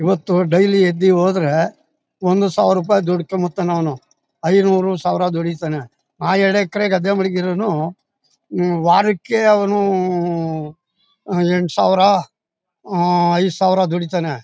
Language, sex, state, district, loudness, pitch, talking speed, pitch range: Kannada, male, Karnataka, Mysore, -17 LUFS, 180 Hz, 115 wpm, 175-195 Hz